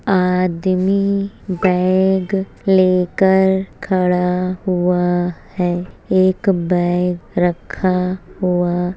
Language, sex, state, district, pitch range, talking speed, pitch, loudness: Hindi, female, Bihar, Jahanabad, 180-190 Hz, 75 wpm, 185 Hz, -17 LUFS